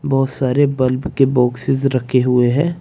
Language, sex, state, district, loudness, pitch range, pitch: Hindi, male, Uttar Pradesh, Saharanpur, -16 LUFS, 125-135 Hz, 135 Hz